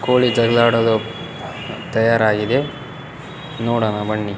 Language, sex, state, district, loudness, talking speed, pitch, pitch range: Kannada, male, Karnataka, Bellary, -18 LUFS, 80 wpm, 115 Hz, 110-135 Hz